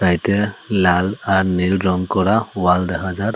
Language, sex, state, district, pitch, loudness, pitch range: Bengali, male, Assam, Hailakandi, 95 Hz, -18 LUFS, 90-100 Hz